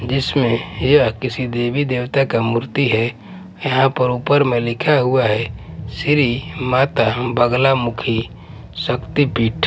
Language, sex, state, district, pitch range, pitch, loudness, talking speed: Hindi, male, Punjab, Pathankot, 120-135 Hz, 125 Hz, -17 LUFS, 130 wpm